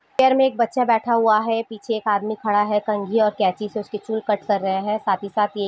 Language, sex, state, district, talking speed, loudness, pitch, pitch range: Hindi, female, Jharkhand, Sahebganj, 265 wpm, -21 LUFS, 215 Hz, 205-225 Hz